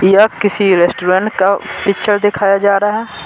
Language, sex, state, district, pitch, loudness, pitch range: Hindi, male, Bihar, Patna, 200 Hz, -13 LUFS, 190-205 Hz